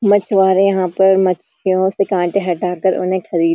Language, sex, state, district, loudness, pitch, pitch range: Hindi, female, Uttarakhand, Uttarkashi, -15 LUFS, 190 Hz, 180-195 Hz